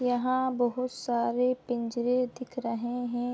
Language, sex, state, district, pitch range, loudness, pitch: Hindi, female, Chhattisgarh, Bilaspur, 240-255 Hz, -30 LUFS, 245 Hz